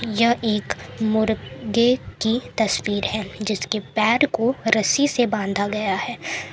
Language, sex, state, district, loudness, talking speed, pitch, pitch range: Hindi, female, Jharkhand, Palamu, -21 LUFS, 130 wpm, 220 Hz, 210-235 Hz